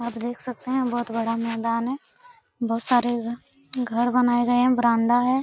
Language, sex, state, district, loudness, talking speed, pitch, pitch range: Hindi, female, Bihar, Araria, -23 LUFS, 190 wpm, 240 Hz, 235-255 Hz